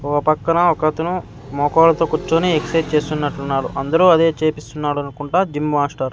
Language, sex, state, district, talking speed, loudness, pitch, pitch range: Telugu, male, Andhra Pradesh, Sri Satya Sai, 125 wpm, -18 LUFS, 155 Hz, 145-165 Hz